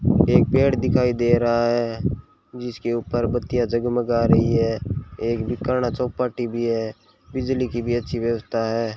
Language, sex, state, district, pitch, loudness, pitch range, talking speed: Hindi, male, Rajasthan, Bikaner, 120 Hz, -22 LUFS, 115-125 Hz, 155 wpm